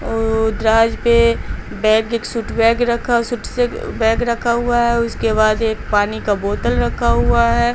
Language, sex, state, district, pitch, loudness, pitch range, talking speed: Hindi, female, Bihar, Patna, 230 Hz, -17 LUFS, 220-235 Hz, 180 wpm